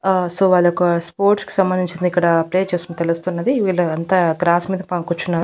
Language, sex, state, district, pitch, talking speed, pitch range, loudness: Telugu, female, Andhra Pradesh, Annamaya, 180 Hz, 175 wpm, 170-185 Hz, -18 LUFS